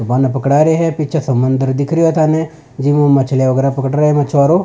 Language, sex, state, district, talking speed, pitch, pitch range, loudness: Rajasthani, male, Rajasthan, Nagaur, 220 wpm, 145 Hz, 135-155 Hz, -13 LUFS